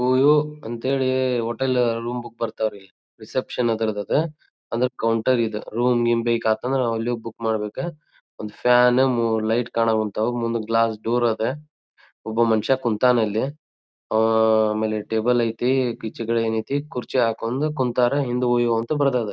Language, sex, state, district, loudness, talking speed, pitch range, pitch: Kannada, male, Karnataka, Dharwad, -22 LUFS, 150 wpm, 110-125 Hz, 115 Hz